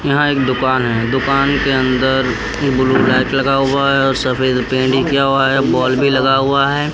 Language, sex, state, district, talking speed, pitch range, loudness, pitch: Hindi, male, Bihar, Katihar, 205 wpm, 130-140 Hz, -14 LUFS, 135 Hz